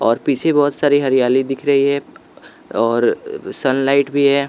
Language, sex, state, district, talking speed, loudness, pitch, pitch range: Hindi, male, Bihar, West Champaran, 160 wpm, -16 LUFS, 140 Hz, 130-145 Hz